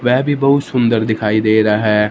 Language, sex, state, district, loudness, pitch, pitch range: Hindi, male, Punjab, Fazilka, -14 LUFS, 110 Hz, 105-130 Hz